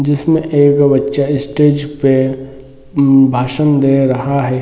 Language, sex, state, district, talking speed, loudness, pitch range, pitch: Hindi, male, Bihar, Sitamarhi, 130 wpm, -12 LUFS, 135-145 Hz, 140 Hz